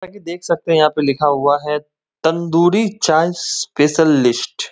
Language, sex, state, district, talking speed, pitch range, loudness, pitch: Hindi, male, West Bengal, Kolkata, 180 wpm, 150-170 Hz, -16 LUFS, 160 Hz